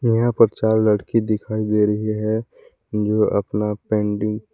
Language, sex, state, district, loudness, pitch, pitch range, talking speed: Hindi, male, Jharkhand, Palamu, -20 LUFS, 110 Hz, 105-110 Hz, 160 wpm